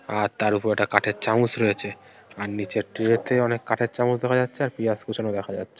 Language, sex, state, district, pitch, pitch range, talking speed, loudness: Bengali, male, West Bengal, North 24 Parganas, 110 Hz, 105-120 Hz, 230 wpm, -24 LUFS